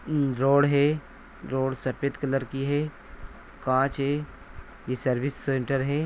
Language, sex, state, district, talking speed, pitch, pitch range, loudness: Hindi, male, Bihar, Purnia, 130 wpm, 140 Hz, 130-145 Hz, -27 LUFS